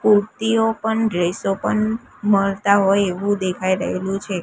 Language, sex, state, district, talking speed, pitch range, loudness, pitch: Gujarati, female, Gujarat, Gandhinagar, 135 wpm, 195-215 Hz, -19 LUFS, 200 Hz